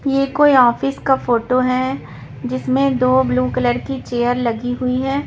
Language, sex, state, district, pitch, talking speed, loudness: Hindi, female, Punjab, Kapurthala, 250 Hz, 170 wpm, -17 LUFS